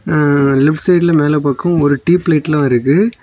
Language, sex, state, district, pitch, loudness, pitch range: Tamil, male, Tamil Nadu, Kanyakumari, 150 Hz, -13 LUFS, 145-170 Hz